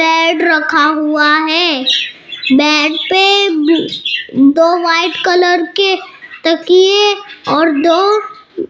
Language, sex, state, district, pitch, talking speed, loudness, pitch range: Hindi, female, Rajasthan, Jaipur, 335 Hz, 95 wpm, -11 LUFS, 310-370 Hz